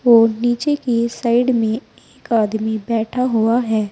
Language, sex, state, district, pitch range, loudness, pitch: Hindi, female, Uttar Pradesh, Saharanpur, 220-240 Hz, -18 LUFS, 235 Hz